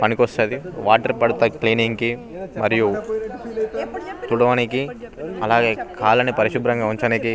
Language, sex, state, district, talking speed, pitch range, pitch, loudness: Telugu, male, Telangana, Nalgonda, 100 wpm, 115-140 Hz, 120 Hz, -20 LUFS